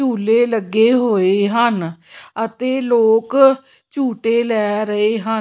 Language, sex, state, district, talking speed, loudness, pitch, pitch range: Punjabi, female, Punjab, Pathankot, 110 wpm, -16 LUFS, 225 Hz, 210-245 Hz